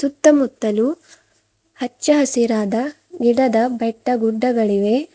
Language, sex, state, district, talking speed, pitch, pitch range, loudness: Kannada, female, Karnataka, Bidar, 60 wpm, 250 Hz, 230-280 Hz, -18 LUFS